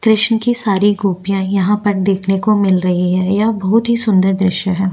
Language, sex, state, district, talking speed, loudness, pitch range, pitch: Hindi, female, Uttarakhand, Tehri Garhwal, 205 wpm, -14 LUFS, 190-215 Hz, 195 Hz